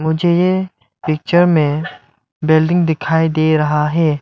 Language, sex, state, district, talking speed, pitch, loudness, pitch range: Hindi, male, Arunachal Pradesh, Lower Dibang Valley, 115 wpm, 160 Hz, -15 LUFS, 150-170 Hz